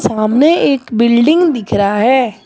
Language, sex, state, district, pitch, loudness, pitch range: Hindi, female, Jharkhand, Deoghar, 235 Hz, -12 LUFS, 220-275 Hz